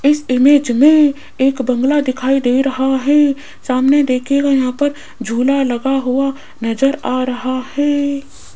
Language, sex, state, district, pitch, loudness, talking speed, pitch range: Hindi, female, Rajasthan, Jaipur, 270 Hz, -15 LUFS, 140 wpm, 255-285 Hz